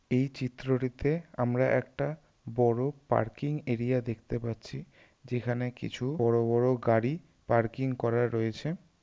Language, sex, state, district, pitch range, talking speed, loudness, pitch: Bengali, male, West Bengal, North 24 Parganas, 120-135 Hz, 115 wpm, -30 LUFS, 125 Hz